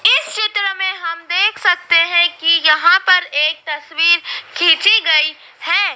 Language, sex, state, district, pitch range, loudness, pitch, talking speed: Hindi, female, Madhya Pradesh, Dhar, 325-385 Hz, -13 LUFS, 345 Hz, 150 wpm